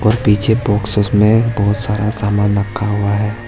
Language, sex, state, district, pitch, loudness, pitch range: Hindi, male, Uttar Pradesh, Saharanpur, 105 Hz, -15 LUFS, 105-110 Hz